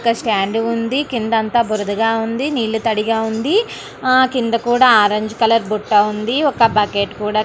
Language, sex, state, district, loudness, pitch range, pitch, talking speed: Telugu, female, Andhra Pradesh, Anantapur, -16 LUFS, 215-240 Hz, 225 Hz, 160 wpm